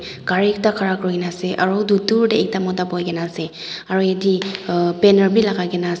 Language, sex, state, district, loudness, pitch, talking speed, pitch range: Nagamese, female, Nagaland, Dimapur, -18 LUFS, 185 Hz, 220 wpm, 175-195 Hz